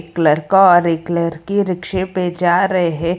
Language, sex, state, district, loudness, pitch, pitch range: Hindi, female, Karnataka, Bangalore, -15 LUFS, 175 Hz, 165-185 Hz